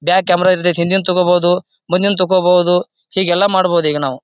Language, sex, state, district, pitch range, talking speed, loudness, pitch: Kannada, male, Karnataka, Bijapur, 175-185 Hz, 155 wpm, -13 LUFS, 180 Hz